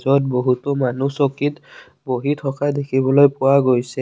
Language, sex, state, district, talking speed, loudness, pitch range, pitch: Assamese, male, Assam, Kamrup Metropolitan, 135 wpm, -18 LUFS, 130-140 Hz, 135 Hz